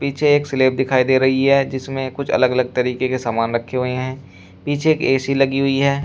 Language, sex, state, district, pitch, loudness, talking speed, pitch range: Hindi, male, Uttar Pradesh, Shamli, 130 Hz, -18 LUFS, 230 wpm, 130-140 Hz